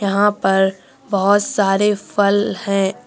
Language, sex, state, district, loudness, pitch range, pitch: Hindi, female, Uttar Pradesh, Saharanpur, -17 LUFS, 195-205 Hz, 200 Hz